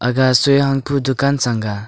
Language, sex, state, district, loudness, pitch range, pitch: Wancho, male, Arunachal Pradesh, Longding, -16 LUFS, 125-140 Hz, 130 Hz